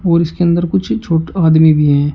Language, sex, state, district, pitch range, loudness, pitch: Hindi, male, Uttar Pradesh, Shamli, 145-170 Hz, -13 LUFS, 160 Hz